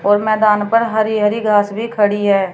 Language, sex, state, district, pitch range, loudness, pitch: Hindi, female, Uttar Pradesh, Shamli, 205-220 Hz, -15 LUFS, 210 Hz